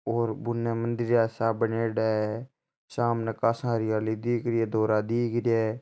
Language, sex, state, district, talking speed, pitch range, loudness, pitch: Marwari, male, Rajasthan, Churu, 165 wpm, 110-120 Hz, -27 LUFS, 115 Hz